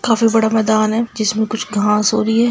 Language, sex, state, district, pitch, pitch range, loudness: Hindi, female, Bihar, Saharsa, 220 Hz, 215-225 Hz, -16 LUFS